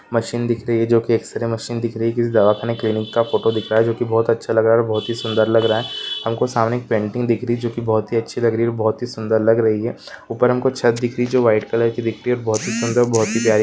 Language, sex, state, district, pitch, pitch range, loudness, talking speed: Hindi, male, West Bengal, Purulia, 115 Hz, 110-120 Hz, -19 LUFS, 275 wpm